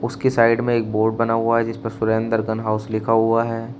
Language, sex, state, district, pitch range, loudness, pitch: Hindi, male, Uttar Pradesh, Shamli, 110-115 Hz, -20 LUFS, 115 Hz